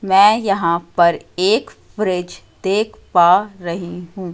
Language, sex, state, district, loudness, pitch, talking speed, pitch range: Hindi, female, Madhya Pradesh, Katni, -17 LUFS, 185 Hz, 125 wpm, 175-200 Hz